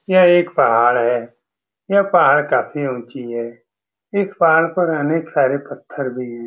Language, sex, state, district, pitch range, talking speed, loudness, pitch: Hindi, male, Bihar, Saran, 120-165 Hz, 155 wpm, -17 LUFS, 135 Hz